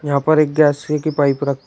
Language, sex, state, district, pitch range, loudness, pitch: Hindi, male, Uttar Pradesh, Shamli, 140-155 Hz, -16 LUFS, 145 Hz